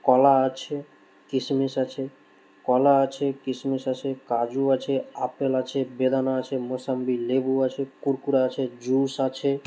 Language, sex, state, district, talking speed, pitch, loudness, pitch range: Bengali, male, West Bengal, Malda, 130 wpm, 130 Hz, -25 LUFS, 130-135 Hz